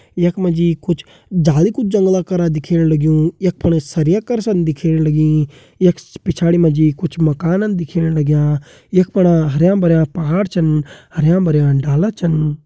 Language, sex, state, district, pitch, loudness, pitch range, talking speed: Kumaoni, male, Uttarakhand, Uttarkashi, 170 Hz, -15 LUFS, 155-180 Hz, 160 wpm